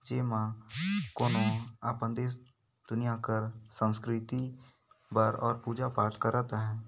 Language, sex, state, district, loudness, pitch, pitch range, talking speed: Sadri, male, Chhattisgarh, Jashpur, -33 LUFS, 115 Hz, 110-125 Hz, 105 wpm